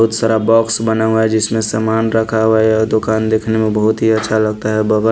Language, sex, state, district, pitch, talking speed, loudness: Hindi, male, Punjab, Pathankot, 110 Hz, 245 wpm, -14 LUFS